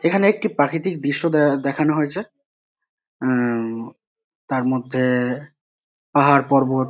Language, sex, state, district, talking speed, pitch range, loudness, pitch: Bengali, male, West Bengal, North 24 Parganas, 105 wpm, 130-190 Hz, -20 LUFS, 145 Hz